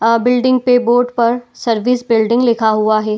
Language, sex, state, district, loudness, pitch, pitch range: Hindi, female, Uttar Pradesh, Etah, -14 LUFS, 235 Hz, 225-245 Hz